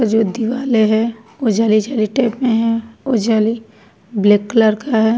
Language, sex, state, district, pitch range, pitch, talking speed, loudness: Hindi, female, Uttar Pradesh, Budaun, 215-230 Hz, 225 Hz, 175 wpm, -16 LUFS